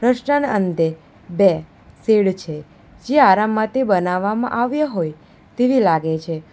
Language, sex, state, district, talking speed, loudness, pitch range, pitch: Gujarati, female, Gujarat, Valsad, 130 wpm, -18 LUFS, 165-245 Hz, 200 Hz